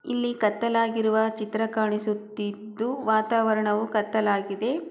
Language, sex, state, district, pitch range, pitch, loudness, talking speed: Kannada, female, Karnataka, Chamarajanagar, 210-230 Hz, 220 Hz, -25 LUFS, 85 wpm